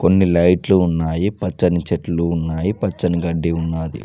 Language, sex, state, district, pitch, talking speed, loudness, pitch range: Telugu, male, Telangana, Mahabubabad, 85 Hz, 135 wpm, -18 LUFS, 85-90 Hz